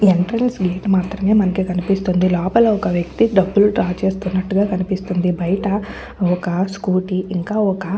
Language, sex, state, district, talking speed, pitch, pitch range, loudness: Telugu, female, Andhra Pradesh, Guntur, 135 wpm, 190 Hz, 185-200 Hz, -18 LUFS